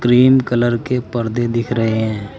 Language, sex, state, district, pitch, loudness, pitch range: Hindi, male, Uttar Pradesh, Saharanpur, 120 Hz, -16 LUFS, 115-125 Hz